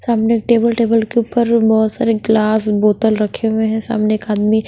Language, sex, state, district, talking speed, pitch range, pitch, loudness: Hindi, female, Haryana, Charkhi Dadri, 205 wpm, 215-230 Hz, 220 Hz, -15 LUFS